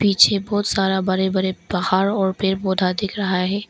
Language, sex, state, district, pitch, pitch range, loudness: Hindi, female, Arunachal Pradesh, Longding, 190 Hz, 190-200 Hz, -19 LUFS